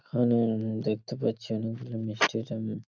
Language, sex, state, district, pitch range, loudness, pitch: Bengali, male, West Bengal, Paschim Medinipur, 110-115 Hz, -29 LUFS, 110 Hz